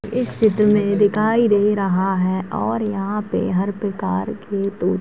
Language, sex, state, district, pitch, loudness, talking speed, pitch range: Hindi, female, Uttar Pradesh, Jalaun, 205 Hz, -19 LUFS, 180 wpm, 195-210 Hz